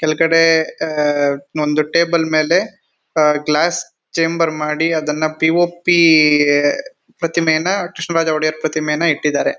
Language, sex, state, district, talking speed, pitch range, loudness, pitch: Kannada, male, Karnataka, Mysore, 115 wpm, 150-165 Hz, -16 LUFS, 160 Hz